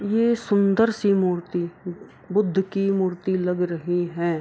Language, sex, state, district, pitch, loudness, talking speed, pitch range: Hindi, female, Bihar, Kishanganj, 190 Hz, -23 LUFS, 150 wpm, 175-200 Hz